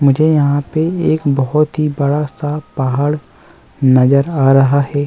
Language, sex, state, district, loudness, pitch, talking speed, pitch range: Hindi, male, Uttar Pradesh, Muzaffarnagar, -14 LUFS, 145 Hz, 130 wpm, 135-150 Hz